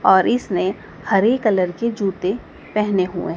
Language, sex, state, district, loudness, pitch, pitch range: Hindi, female, Madhya Pradesh, Dhar, -20 LUFS, 195 Hz, 185-220 Hz